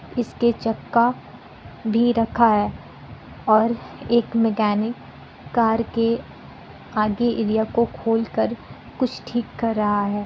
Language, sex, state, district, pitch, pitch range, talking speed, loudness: Hindi, female, Bihar, Kishanganj, 230 Hz, 220-235 Hz, 115 wpm, -22 LUFS